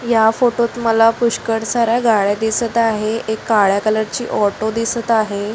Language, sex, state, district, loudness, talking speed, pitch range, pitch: Marathi, female, Maharashtra, Solapur, -16 LUFS, 175 wpm, 215-235 Hz, 225 Hz